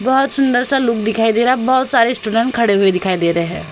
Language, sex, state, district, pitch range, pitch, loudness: Hindi, female, Uttar Pradesh, Hamirpur, 210-260 Hz, 235 Hz, -15 LUFS